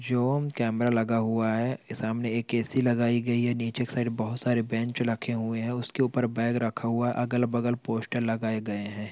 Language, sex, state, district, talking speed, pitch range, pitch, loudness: Hindi, male, Chhattisgarh, Rajnandgaon, 215 wpm, 115-120 Hz, 120 Hz, -28 LUFS